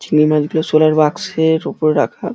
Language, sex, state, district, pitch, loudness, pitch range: Bengali, male, West Bengal, Dakshin Dinajpur, 155 Hz, -15 LUFS, 150-160 Hz